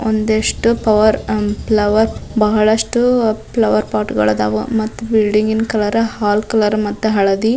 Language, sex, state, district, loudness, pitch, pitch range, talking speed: Kannada, female, Karnataka, Dharwad, -15 LUFS, 215 Hz, 210-225 Hz, 110 wpm